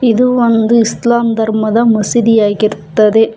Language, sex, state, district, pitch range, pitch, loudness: Kannada, female, Karnataka, Bangalore, 215-235 Hz, 225 Hz, -11 LUFS